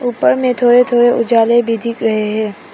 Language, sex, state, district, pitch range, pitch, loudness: Hindi, female, Arunachal Pradesh, Papum Pare, 220-245 Hz, 235 Hz, -13 LUFS